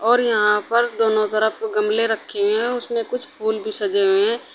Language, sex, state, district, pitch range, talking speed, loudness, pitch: Hindi, female, Uttar Pradesh, Saharanpur, 215-240 Hz, 210 wpm, -19 LUFS, 220 Hz